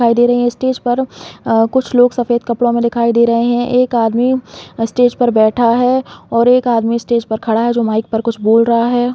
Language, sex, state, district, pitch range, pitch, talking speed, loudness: Hindi, female, Chhattisgarh, Balrampur, 230-245 Hz, 235 Hz, 245 wpm, -14 LUFS